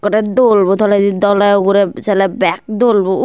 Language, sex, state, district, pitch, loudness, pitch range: Chakma, female, Tripura, Unakoti, 205 Hz, -12 LUFS, 200-215 Hz